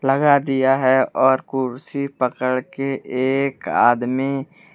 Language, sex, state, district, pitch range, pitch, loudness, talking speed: Hindi, male, Jharkhand, Deoghar, 130-140 Hz, 135 Hz, -19 LUFS, 115 wpm